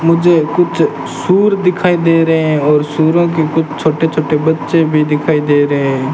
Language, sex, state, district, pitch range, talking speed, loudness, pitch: Hindi, male, Rajasthan, Bikaner, 150-165 Hz, 185 wpm, -12 LUFS, 160 Hz